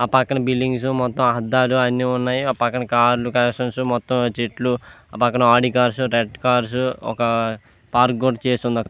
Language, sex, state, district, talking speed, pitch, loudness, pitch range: Telugu, male, Andhra Pradesh, Visakhapatnam, 155 wpm, 125 Hz, -19 LUFS, 120-125 Hz